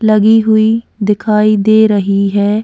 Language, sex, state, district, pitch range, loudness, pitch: Hindi, female, Goa, North and South Goa, 205-220 Hz, -11 LUFS, 215 Hz